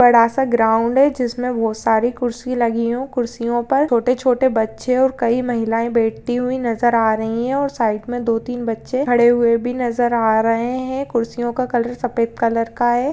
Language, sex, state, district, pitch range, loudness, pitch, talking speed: Hindi, female, Uttar Pradesh, Jyotiba Phule Nagar, 230-250 Hz, -18 LUFS, 240 Hz, 195 wpm